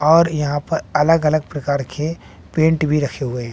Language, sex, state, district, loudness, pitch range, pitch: Hindi, male, Bihar, West Champaran, -18 LUFS, 145-160 Hz, 150 Hz